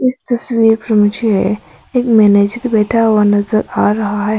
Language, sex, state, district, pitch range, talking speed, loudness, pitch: Hindi, female, Arunachal Pradesh, Papum Pare, 205-230 Hz, 165 wpm, -13 LUFS, 215 Hz